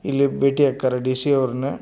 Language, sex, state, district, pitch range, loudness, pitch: Kannada, male, Karnataka, Dharwad, 130-140 Hz, -20 LUFS, 135 Hz